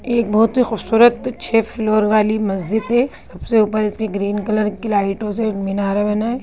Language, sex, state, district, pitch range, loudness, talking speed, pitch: Hindi, female, Bihar, Jamui, 210-230 Hz, -18 LUFS, 185 wpm, 215 Hz